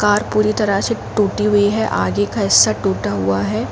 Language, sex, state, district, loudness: Hindi, female, Uttar Pradesh, Jalaun, -16 LUFS